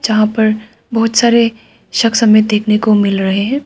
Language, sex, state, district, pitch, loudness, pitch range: Hindi, female, Arunachal Pradesh, Papum Pare, 220 Hz, -12 LUFS, 215-230 Hz